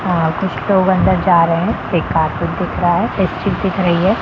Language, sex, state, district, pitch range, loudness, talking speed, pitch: Hindi, female, Bihar, Gaya, 175-195 Hz, -15 LUFS, 225 wpm, 185 Hz